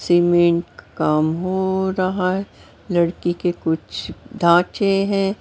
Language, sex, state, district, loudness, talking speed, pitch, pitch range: Hindi, female, Maharashtra, Mumbai Suburban, -19 LUFS, 110 wpm, 175 Hz, 170-190 Hz